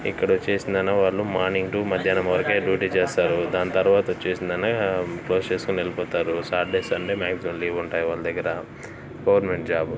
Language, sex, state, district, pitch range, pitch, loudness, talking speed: Telugu, male, Andhra Pradesh, Chittoor, 90-95 Hz, 95 Hz, -23 LUFS, 120 wpm